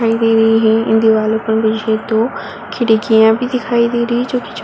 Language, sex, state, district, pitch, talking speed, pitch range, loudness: Hindi, female, Uttar Pradesh, Muzaffarnagar, 225 Hz, 205 wpm, 220-235 Hz, -14 LUFS